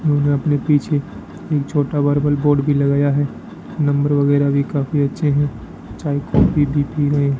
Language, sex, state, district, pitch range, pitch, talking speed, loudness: Hindi, male, Rajasthan, Bikaner, 140-145 Hz, 145 Hz, 180 wpm, -18 LUFS